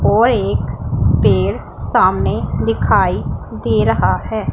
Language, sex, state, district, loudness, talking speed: Hindi, female, Punjab, Pathankot, -16 LUFS, 105 wpm